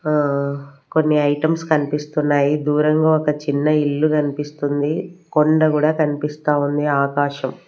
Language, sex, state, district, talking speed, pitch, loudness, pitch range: Telugu, female, Andhra Pradesh, Sri Satya Sai, 110 wpm, 150 Hz, -19 LUFS, 145-155 Hz